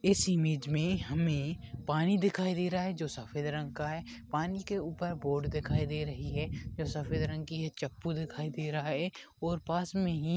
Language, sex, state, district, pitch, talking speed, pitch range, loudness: Hindi, male, Goa, North and South Goa, 155 Hz, 215 wpm, 150-175 Hz, -34 LUFS